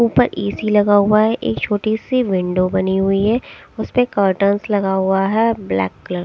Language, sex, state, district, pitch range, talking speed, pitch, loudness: Hindi, female, Odisha, Sambalpur, 190-215 Hz, 190 wpm, 200 Hz, -17 LUFS